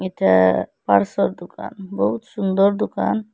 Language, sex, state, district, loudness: Bengali, female, Assam, Hailakandi, -19 LUFS